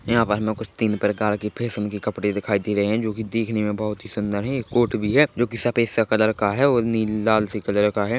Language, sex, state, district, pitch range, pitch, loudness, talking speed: Hindi, male, Chhattisgarh, Bilaspur, 105-115 Hz, 110 Hz, -22 LUFS, 300 wpm